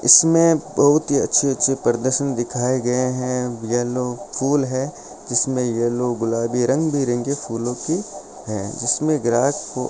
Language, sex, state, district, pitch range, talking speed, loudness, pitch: Hindi, male, Rajasthan, Bikaner, 120-145 Hz, 150 wpm, -20 LUFS, 125 Hz